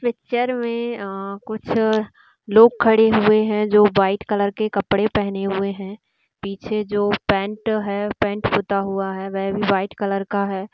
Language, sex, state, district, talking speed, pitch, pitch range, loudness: Hindi, female, Bihar, East Champaran, 175 wpm, 205 Hz, 195-215 Hz, -20 LUFS